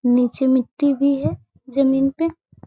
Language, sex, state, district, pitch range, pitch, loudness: Hindi, female, Bihar, Gaya, 255-280 Hz, 275 Hz, -19 LUFS